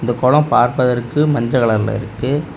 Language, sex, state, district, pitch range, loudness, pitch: Tamil, male, Tamil Nadu, Kanyakumari, 120-145 Hz, -16 LUFS, 125 Hz